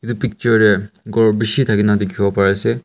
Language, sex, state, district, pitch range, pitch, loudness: Nagamese, male, Nagaland, Kohima, 105-115 Hz, 110 Hz, -16 LUFS